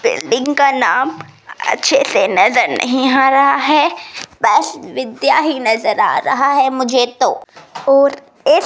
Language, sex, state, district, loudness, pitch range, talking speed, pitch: Hindi, female, Rajasthan, Jaipur, -14 LUFS, 250-280 Hz, 155 wpm, 270 Hz